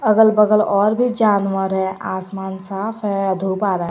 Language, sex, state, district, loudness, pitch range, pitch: Hindi, female, Jharkhand, Garhwa, -18 LUFS, 190-215 Hz, 195 Hz